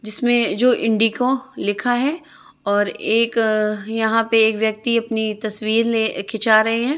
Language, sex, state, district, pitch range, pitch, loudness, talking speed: Hindi, female, Chhattisgarh, Raipur, 215-235 Hz, 225 Hz, -19 LUFS, 145 wpm